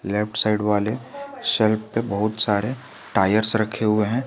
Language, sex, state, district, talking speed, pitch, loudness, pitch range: Hindi, male, Jharkhand, Garhwa, 155 wpm, 110 Hz, -21 LUFS, 105-115 Hz